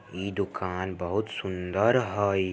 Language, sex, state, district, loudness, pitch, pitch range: Maithili, male, Bihar, Samastipur, -28 LUFS, 95 Hz, 95-100 Hz